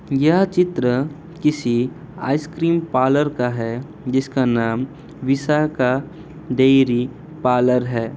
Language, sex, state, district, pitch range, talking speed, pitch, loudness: Hindi, male, Bihar, Kishanganj, 125-155 Hz, 105 wpm, 135 Hz, -19 LUFS